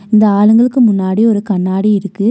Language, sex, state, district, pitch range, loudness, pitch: Tamil, female, Tamil Nadu, Nilgiris, 200-220 Hz, -11 LUFS, 205 Hz